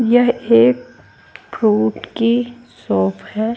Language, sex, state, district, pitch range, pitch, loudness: Hindi, female, Haryana, Charkhi Dadri, 215-245 Hz, 235 Hz, -16 LUFS